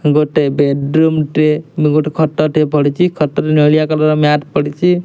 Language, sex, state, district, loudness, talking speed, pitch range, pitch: Odia, male, Odisha, Nuapada, -13 LUFS, 140 wpm, 150-155 Hz, 155 Hz